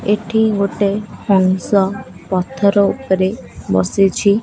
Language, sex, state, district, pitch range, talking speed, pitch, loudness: Odia, female, Odisha, Khordha, 190-210 Hz, 80 wpm, 200 Hz, -16 LUFS